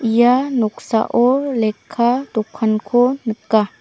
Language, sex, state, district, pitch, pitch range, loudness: Garo, female, Meghalaya, South Garo Hills, 235 Hz, 220-250 Hz, -17 LUFS